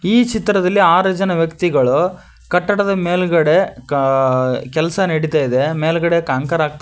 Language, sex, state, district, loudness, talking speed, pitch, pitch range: Kannada, male, Karnataka, Koppal, -16 LUFS, 130 wpm, 170 Hz, 150-185 Hz